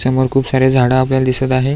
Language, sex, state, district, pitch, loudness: Marathi, male, Maharashtra, Aurangabad, 130 Hz, -14 LUFS